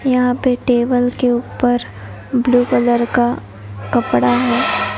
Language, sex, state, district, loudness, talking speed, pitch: Hindi, female, Odisha, Nuapada, -16 LUFS, 120 wpm, 245 Hz